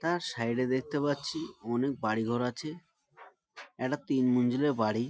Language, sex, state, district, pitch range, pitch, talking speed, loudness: Bengali, male, West Bengal, Malda, 120-150 Hz, 130 Hz, 155 wpm, -31 LUFS